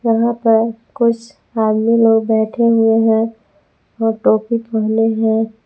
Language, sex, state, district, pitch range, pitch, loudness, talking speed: Hindi, female, Jharkhand, Palamu, 220-230 Hz, 225 Hz, -15 LUFS, 125 wpm